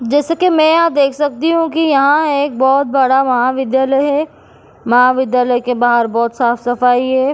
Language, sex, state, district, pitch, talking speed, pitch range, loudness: Hindi, female, Goa, North and South Goa, 265 Hz, 170 wpm, 250-295 Hz, -13 LUFS